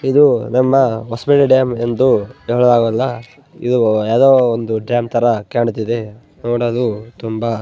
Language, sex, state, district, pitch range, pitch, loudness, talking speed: Kannada, male, Karnataka, Bellary, 115-130 Hz, 120 Hz, -15 LUFS, 120 wpm